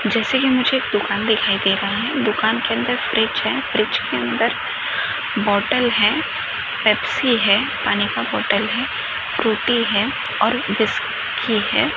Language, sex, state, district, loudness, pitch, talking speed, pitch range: Hindi, female, Rajasthan, Nagaur, -19 LUFS, 235 Hz, 155 wpm, 210-260 Hz